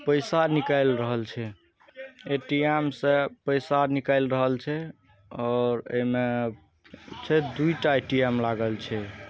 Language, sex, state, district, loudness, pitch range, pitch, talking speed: Hindi, male, Bihar, Saharsa, -26 LUFS, 120-145 Hz, 130 Hz, 105 wpm